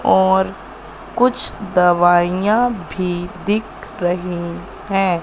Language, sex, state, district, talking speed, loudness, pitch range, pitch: Hindi, female, Madhya Pradesh, Katni, 80 wpm, -18 LUFS, 175-205 Hz, 185 Hz